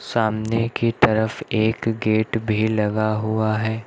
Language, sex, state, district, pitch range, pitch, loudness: Hindi, male, Uttar Pradesh, Lucknow, 110-115 Hz, 110 Hz, -21 LUFS